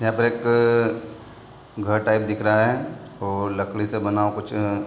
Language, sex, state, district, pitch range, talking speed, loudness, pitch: Hindi, male, Uttar Pradesh, Deoria, 105-115 Hz, 185 wpm, -22 LUFS, 110 Hz